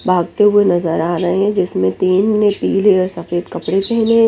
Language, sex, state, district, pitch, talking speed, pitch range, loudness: Hindi, female, Chandigarh, Chandigarh, 185 Hz, 210 wpm, 175-205 Hz, -15 LUFS